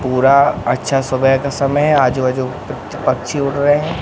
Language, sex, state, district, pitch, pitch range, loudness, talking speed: Hindi, male, Madhya Pradesh, Katni, 135 Hz, 130-145 Hz, -15 LUFS, 195 wpm